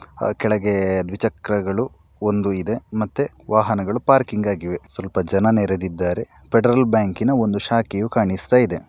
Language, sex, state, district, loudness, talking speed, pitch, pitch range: Kannada, male, Karnataka, Dakshina Kannada, -20 LUFS, 115 wpm, 105 Hz, 95-115 Hz